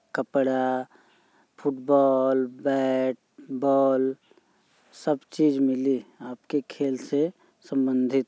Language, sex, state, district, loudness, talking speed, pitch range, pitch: Bhojpuri, male, Uttar Pradesh, Gorakhpur, -25 LUFS, 65 wpm, 130-140 Hz, 135 Hz